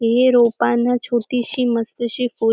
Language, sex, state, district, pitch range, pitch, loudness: Marathi, female, Maharashtra, Dhule, 230-245 Hz, 240 Hz, -18 LUFS